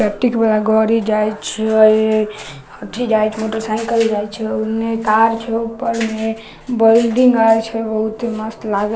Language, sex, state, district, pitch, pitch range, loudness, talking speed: Maithili, female, Bihar, Samastipur, 220 Hz, 215-225 Hz, -16 LUFS, 155 wpm